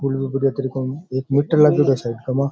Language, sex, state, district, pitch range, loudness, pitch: Rajasthani, male, Rajasthan, Churu, 130-140 Hz, -19 LUFS, 135 Hz